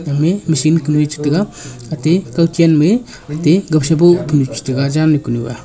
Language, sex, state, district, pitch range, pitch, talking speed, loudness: Wancho, male, Arunachal Pradesh, Longding, 145-165 Hz, 155 Hz, 160 wpm, -14 LUFS